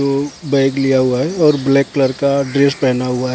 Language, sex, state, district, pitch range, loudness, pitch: Hindi, male, Maharashtra, Mumbai Suburban, 130-140 Hz, -15 LUFS, 140 Hz